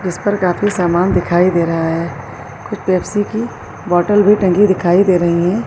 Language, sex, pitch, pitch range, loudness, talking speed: Urdu, female, 180 Hz, 175-205 Hz, -14 LUFS, 190 wpm